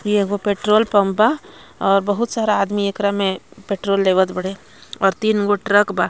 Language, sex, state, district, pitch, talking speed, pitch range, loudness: Bhojpuri, female, Jharkhand, Palamu, 200 Hz, 185 wpm, 195-210 Hz, -18 LUFS